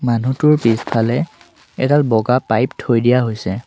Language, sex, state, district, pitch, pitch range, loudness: Assamese, male, Assam, Sonitpur, 120 Hz, 115-130 Hz, -16 LUFS